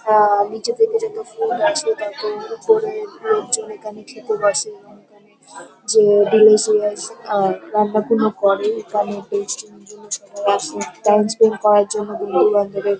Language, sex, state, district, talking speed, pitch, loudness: Bengali, female, West Bengal, North 24 Parganas, 145 wpm, 215 Hz, -18 LUFS